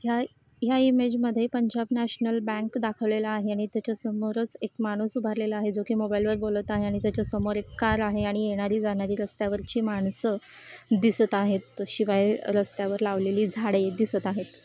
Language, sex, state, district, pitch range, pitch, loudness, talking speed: Marathi, female, Maharashtra, Solapur, 205-225 Hz, 215 Hz, -27 LUFS, 170 wpm